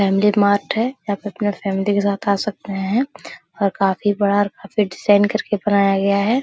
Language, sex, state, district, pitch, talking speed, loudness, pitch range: Hindi, female, Bihar, Araria, 205 Hz, 205 wpm, -19 LUFS, 200-210 Hz